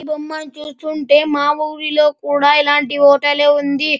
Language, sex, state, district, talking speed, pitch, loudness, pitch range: Telugu, male, Andhra Pradesh, Anantapur, 180 wpm, 290 Hz, -14 LUFS, 290-300 Hz